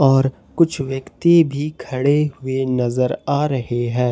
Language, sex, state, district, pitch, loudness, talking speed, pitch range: Hindi, male, Jharkhand, Ranchi, 135 Hz, -19 LUFS, 145 wpm, 125-145 Hz